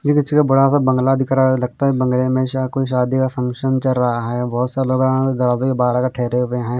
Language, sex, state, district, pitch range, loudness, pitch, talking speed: Hindi, male, Bihar, Patna, 125-135 Hz, -17 LUFS, 130 Hz, 290 wpm